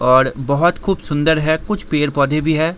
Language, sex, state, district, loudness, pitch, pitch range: Hindi, male, Bihar, Darbhanga, -17 LUFS, 155 Hz, 140-160 Hz